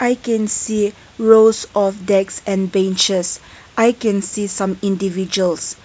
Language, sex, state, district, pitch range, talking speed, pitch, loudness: English, female, Nagaland, Kohima, 190-220 Hz, 135 wpm, 200 Hz, -17 LUFS